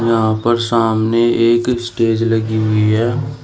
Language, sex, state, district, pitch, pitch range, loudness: Hindi, male, Uttar Pradesh, Shamli, 115 Hz, 110-120 Hz, -15 LUFS